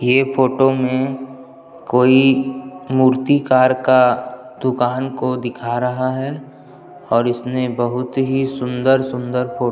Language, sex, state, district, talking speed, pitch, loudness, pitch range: Hindi, male, Chhattisgarh, Jashpur, 110 wpm, 130 Hz, -17 LUFS, 125-135 Hz